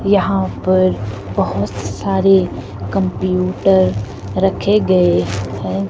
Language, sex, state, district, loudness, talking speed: Hindi, female, Himachal Pradesh, Shimla, -16 LUFS, 80 wpm